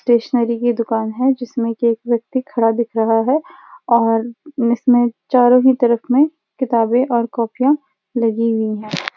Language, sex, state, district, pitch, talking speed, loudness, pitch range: Hindi, female, Uttarakhand, Uttarkashi, 235 Hz, 155 wpm, -17 LUFS, 230-260 Hz